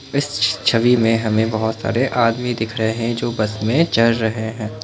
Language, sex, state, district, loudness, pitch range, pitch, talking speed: Hindi, male, Assam, Kamrup Metropolitan, -18 LUFS, 110-120 Hz, 115 Hz, 200 wpm